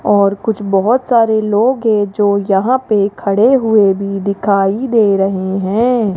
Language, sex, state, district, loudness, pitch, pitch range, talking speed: Hindi, female, Rajasthan, Jaipur, -13 LUFS, 205 Hz, 195-225 Hz, 155 wpm